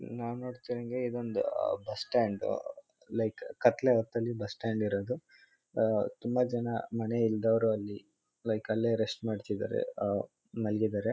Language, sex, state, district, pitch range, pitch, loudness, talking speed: Kannada, male, Karnataka, Mysore, 110-125 Hz, 115 Hz, -33 LUFS, 135 wpm